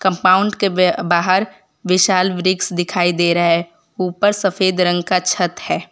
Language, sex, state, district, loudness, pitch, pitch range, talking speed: Hindi, female, Gujarat, Valsad, -16 LUFS, 185 Hz, 175-190 Hz, 160 wpm